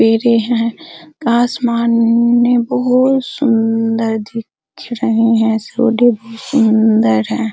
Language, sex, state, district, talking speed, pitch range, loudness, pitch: Hindi, female, Bihar, Araria, 105 wpm, 225-240 Hz, -14 LUFS, 230 Hz